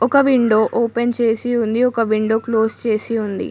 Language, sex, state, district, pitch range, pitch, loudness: Telugu, female, Telangana, Mahabubabad, 220-240 Hz, 230 Hz, -17 LUFS